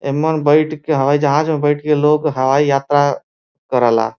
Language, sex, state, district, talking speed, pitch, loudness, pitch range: Bhojpuri, male, Uttar Pradesh, Varanasi, 170 wpm, 145 Hz, -15 LUFS, 140-150 Hz